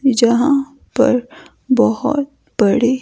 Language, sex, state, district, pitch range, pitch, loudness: Hindi, female, Himachal Pradesh, Shimla, 250-285 Hz, 265 Hz, -16 LUFS